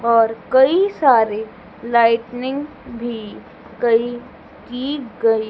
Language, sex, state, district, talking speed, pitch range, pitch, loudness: Hindi, female, Madhya Pradesh, Dhar, 85 wpm, 225-260 Hz, 235 Hz, -18 LUFS